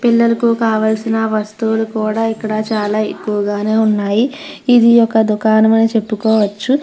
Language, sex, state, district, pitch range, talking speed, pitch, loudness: Telugu, female, Andhra Pradesh, Krishna, 215-225 Hz, 115 wpm, 220 Hz, -14 LUFS